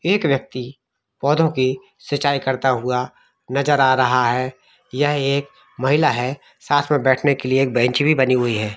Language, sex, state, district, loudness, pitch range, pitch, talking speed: Hindi, male, Jharkhand, Jamtara, -19 LUFS, 125-145 Hz, 135 Hz, 180 wpm